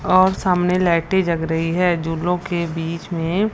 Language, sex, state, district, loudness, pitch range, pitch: Hindi, female, Punjab, Fazilka, -19 LUFS, 165-180 Hz, 175 Hz